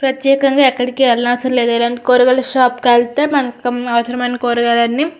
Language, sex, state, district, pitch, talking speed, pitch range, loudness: Telugu, female, Andhra Pradesh, Srikakulam, 250 Hz, 150 wpm, 240-265 Hz, -14 LUFS